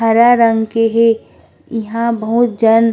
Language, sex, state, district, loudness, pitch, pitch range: Chhattisgarhi, female, Chhattisgarh, Korba, -13 LUFS, 225 Hz, 220-230 Hz